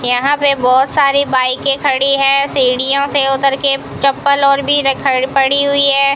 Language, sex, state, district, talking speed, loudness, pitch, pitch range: Hindi, female, Rajasthan, Bikaner, 185 wpm, -12 LUFS, 275 Hz, 270-280 Hz